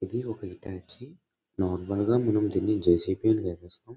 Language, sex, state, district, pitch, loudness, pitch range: Telugu, male, Karnataka, Bellary, 105 Hz, -27 LUFS, 90-115 Hz